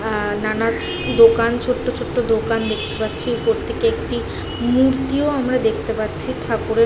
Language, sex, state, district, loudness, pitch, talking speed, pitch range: Bengali, female, West Bengal, Jhargram, -19 LUFS, 240 Hz, 130 wpm, 225-265 Hz